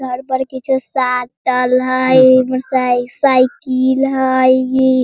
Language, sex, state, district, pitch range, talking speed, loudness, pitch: Hindi, female, Bihar, Sitamarhi, 255-260 Hz, 120 wpm, -14 LUFS, 255 Hz